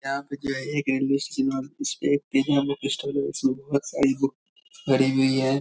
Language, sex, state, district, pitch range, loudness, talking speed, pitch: Hindi, male, Bihar, Darbhanga, 135-140 Hz, -25 LUFS, 245 wpm, 140 Hz